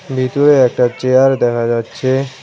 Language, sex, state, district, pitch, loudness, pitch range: Bengali, male, West Bengal, Cooch Behar, 130 Hz, -13 LUFS, 120-135 Hz